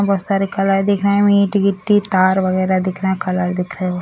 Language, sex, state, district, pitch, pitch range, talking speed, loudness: Hindi, female, Bihar, Sitamarhi, 195 Hz, 185-200 Hz, 180 wpm, -16 LUFS